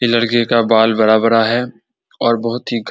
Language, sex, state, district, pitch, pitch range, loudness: Hindi, male, Bihar, Saran, 115 Hz, 115-120 Hz, -14 LUFS